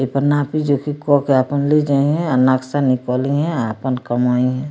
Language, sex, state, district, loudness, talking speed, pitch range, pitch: Bhojpuri, female, Bihar, Muzaffarpur, -17 LUFS, 180 wpm, 130-145 Hz, 140 Hz